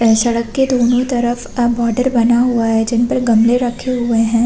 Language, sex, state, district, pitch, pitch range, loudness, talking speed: Hindi, female, Chhattisgarh, Rajnandgaon, 240 Hz, 230-245 Hz, -15 LUFS, 215 wpm